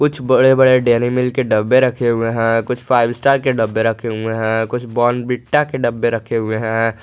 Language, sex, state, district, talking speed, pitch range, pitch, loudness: Hindi, male, Jharkhand, Garhwa, 215 wpm, 115-130 Hz, 120 Hz, -16 LUFS